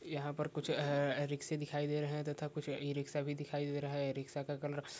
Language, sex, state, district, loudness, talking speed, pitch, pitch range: Hindi, male, Rajasthan, Nagaur, -39 LUFS, 240 wpm, 145 Hz, 145-150 Hz